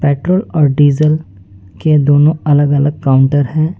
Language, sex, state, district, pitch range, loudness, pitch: Hindi, male, West Bengal, Alipurduar, 140-155 Hz, -12 LUFS, 145 Hz